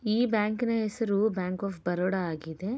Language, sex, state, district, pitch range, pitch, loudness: Kannada, female, Karnataka, Bellary, 185-220 Hz, 205 Hz, -29 LUFS